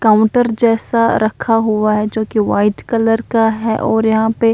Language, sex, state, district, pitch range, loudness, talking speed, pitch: Hindi, female, Bihar, Katihar, 215-230 Hz, -14 LUFS, 170 wpm, 225 Hz